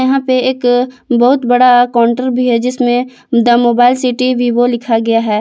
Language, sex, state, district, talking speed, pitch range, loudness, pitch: Hindi, female, Jharkhand, Palamu, 175 wpm, 240-255 Hz, -12 LUFS, 245 Hz